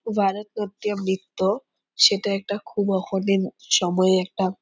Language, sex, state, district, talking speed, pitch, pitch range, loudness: Bengali, female, West Bengal, Purulia, 130 wpm, 195 Hz, 190-205 Hz, -23 LUFS